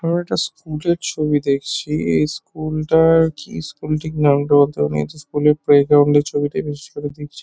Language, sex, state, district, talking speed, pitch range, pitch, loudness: Bengali, male, West Bengal, North 24 Parganas, 220 wpm, 145-155 Hz, 150 Hz, -18 LUFS